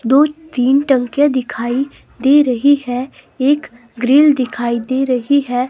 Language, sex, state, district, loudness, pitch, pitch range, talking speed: Hindi, female, Himachal Pradesh, Shimla, -15 LUFS, 260 Hz, 245-285 Hz, 135 wpm